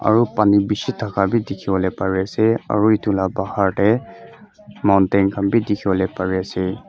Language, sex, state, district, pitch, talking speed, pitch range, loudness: Nagamese, male, Mizoram, Aizawl, 100 Hz, 155 wpm, 95-110 Hz, -19 LUFS